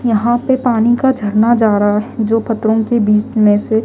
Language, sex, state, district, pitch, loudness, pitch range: Hindi, female, Delhi, New Delhi, 225 Hz, -13 LUFS, 215-235 Hz